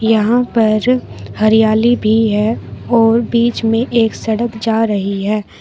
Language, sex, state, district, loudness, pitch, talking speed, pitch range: Hindi, female, Uttar Pradesh, Shamli, -14 LUFS, 225 Hz, 140 wpm, 215-235 Hz